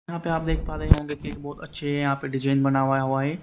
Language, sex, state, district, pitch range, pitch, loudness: Hindi, male, Haryana, Rohtak, 135-160 Hz, 145 Hz, -25 LUFS